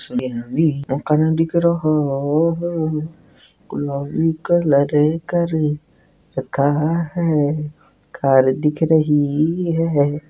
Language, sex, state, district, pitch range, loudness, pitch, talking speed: Hindi, male, Rajasthan, Nagaur, 145-165 Hz, -18 LUFS, 150 Hz, 80 wpm